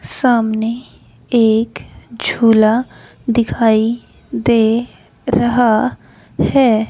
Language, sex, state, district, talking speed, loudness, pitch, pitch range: Hindi, female, Haryana, Charkhi Dadri, 60 wpm, -15 LUFS, 235 Hz, 220-245 Hz